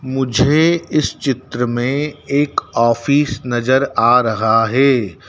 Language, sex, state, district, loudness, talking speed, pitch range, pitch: Hindi, male, Madhya Pradesh, Dhar, -16 LUFS, 115 wpm, 120-145 Hz, 130 Hz